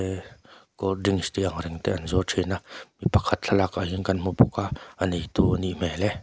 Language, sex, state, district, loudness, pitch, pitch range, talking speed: Mizo, male, Mizoram, Aizawl, -26 LUFS, 95 Hz, 90-100 Hz, 220 wpm